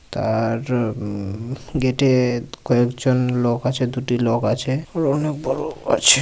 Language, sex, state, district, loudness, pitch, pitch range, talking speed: Bengali, male, West Bengal, Malda, -21 LUFS, 125 Hz, 115-130 Hz, 125 wpm